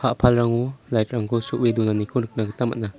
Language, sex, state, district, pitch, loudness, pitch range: Garo, male, Meghalaya, South Garo Hills, 120 Hz, -22 LUFS, 110-120 Hz